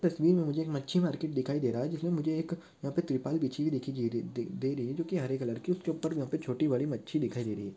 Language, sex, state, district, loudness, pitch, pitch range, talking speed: Hindi, male, Maharashtra, Solapur, -33 LUFS, 150 Hz, 130-165 Hz, 300 wpm